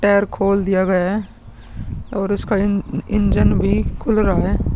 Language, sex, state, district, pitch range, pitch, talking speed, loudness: Hindi, male, Uttar Pradesh, Muzaffarnagar, 175-200 Hz, 195 Hz, 150 wpm, -18 LUFS